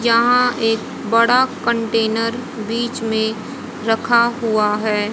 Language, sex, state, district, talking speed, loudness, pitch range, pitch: Hindi, female, Haryana, Jhajjar, 105 wpm, -18 LUFS, 220-240 Hz, 230 Hz